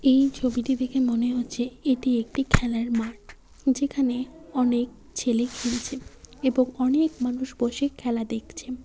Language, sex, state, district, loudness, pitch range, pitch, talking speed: Bengali, female, West Bengal, Cooch Behar, -26 LUFS, 240-265 Hz, 255 Hz, 130 wpm